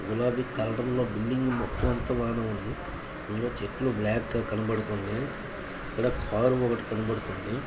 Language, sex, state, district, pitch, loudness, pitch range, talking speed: Telugu, male, Andhra Pradesh, Visakhapatnam, 115 Hz, -30 LUFS, 105-125 Hz, 80 wpm